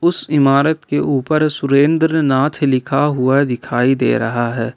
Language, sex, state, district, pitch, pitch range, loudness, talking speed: Hindi, male, Jharkhand, Ranchi, 140 Hz, 130-155 Hz, -15 LUFS, 140 wpm